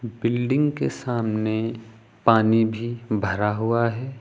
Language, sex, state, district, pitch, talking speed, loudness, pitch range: Hindi, male, Uttar Pradesh, Lucknow, 115 Hz, 115 wpm, -23 LUFS, 110-120 Hz